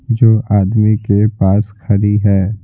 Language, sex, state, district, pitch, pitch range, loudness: Hindi, male, Bihar, Patna, 105 Hz, 100-110 Hz, -13 LUFS